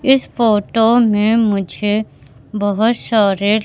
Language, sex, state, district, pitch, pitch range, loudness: Hindi, female, Madhya Pradesh, Katni, 210 Hz, 205-230 Hz, -15 LUFS